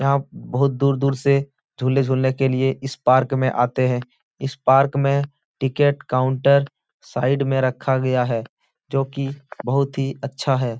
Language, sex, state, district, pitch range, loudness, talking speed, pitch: Hindi, male, Uttar Pradesh, Etah, 130-140 Hz, -21 LUFS, 160 wpm, 135 Hz